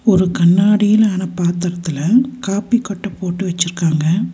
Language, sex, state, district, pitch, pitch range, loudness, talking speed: Tamil, female, Tamil Nadu, Nilgiris, 185 Hz, 175-210 Hz, -16 LUFS, 95 wpm